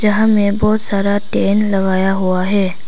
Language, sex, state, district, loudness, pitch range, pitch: Hindi, female, Arunachal Pradesh, Papum Pare, -15 LUFS, 190-210 Hz, 200 Hz